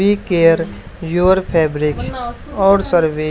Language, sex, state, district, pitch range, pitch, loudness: Hindi, male, Haryana, Charkhi Dadri, 165-195 Hz, 175 Hz, -15 LUFS